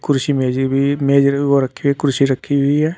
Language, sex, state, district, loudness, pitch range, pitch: Hindi, male, Uttar Pradesh, Saharanpur, -16 LUFS, 135-140 Hz, 140 Hz